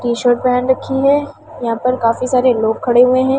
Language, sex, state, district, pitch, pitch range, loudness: Hindi, female, Delhi, New Delhi, 250 Hz, 240-260 Hz, -15 LUFS